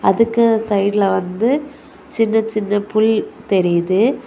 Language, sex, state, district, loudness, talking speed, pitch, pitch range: Tamil, female, Tamil Nadu, Kanyakumari, -17 LUFS, 100 wpm, 215 Hz, 195-225 Hz